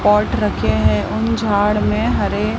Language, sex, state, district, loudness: Hindi, male, Maharashtra, Mumbai Suburban, -17 LUFS